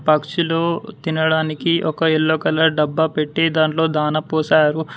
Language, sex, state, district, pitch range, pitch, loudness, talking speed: Telugu, male, Telangana, Mahabubabad, 155-160 Hz, 160 Hz, -18 LUFS, 120 wpm